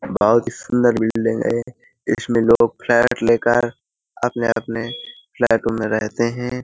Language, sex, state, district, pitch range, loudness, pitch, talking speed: Hindi, male, Uttar Pradesh, Hamirpur, 115-120 Hz, -19 LUFS, 115 Hz, 135 wpm